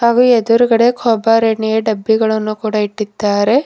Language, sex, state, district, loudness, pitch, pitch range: Kannada, female, Karnataka, Bidar, -14 LUFS, 220 Hz, 215-235 Hz